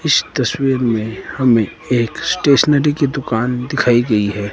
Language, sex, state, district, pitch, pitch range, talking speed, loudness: Hindi, male, Himachal Pradesh, Shimla, 125 Hz, 115-140 Hz, 145 wpm, -16 LUFS